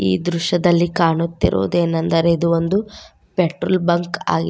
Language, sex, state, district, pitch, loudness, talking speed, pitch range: Kannada, female, Karnataka, Koppal, 170 Hz, -18 LUFS, 105 wpm, 165-175 Hz